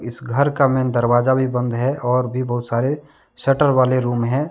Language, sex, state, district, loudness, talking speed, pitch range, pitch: Hindi, male, Jharkhand, Deoghar, -19 LUFS, 210 wpm, 120-135 Hz, 130 Hz